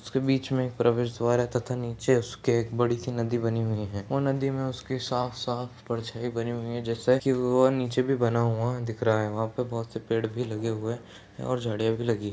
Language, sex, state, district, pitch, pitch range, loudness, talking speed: Hindi, male, Bihar, Saharsa, 120 Hz, 115-125 Hz, -28 LUFS, 245 wpm